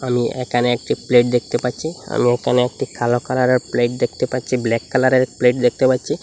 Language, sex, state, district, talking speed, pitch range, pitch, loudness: Bengali, male, Assam, Hailakandi, 185 wpm, 120-130 Hz, 125 Hz, -18 LUFS